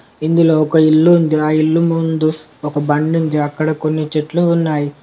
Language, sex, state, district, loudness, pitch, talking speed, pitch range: Telugu, male, Telangana, Komaram Bheem, -14 LUFS, 155 Hz, 165 wpm, 150-165 Hz